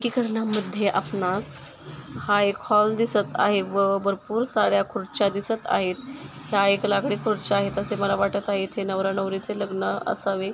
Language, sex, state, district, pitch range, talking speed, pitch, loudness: Marathi, female, Maharashtra, Nagpur, 195-210 Hz, 150 wpm, 200 Hz, -24 LUFS